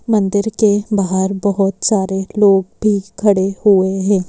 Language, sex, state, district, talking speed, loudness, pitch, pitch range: Hindi, female, Madhya Pradesh, Bhopal, 140 wpm, -15 LUFS, 200 Hz, 190-210 Hz